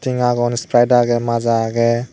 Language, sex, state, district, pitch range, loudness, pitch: Chakma, male, Tripura, Dhalai, 115-120 Hz, -16 LUFS, 120 Hz